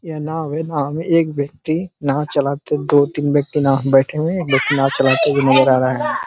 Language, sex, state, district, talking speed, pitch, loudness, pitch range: Hindi, male, Uttar Pradesh, Ghazipur, 260 wpm, 145 Hz, -17 LUFS, 135-155 Hz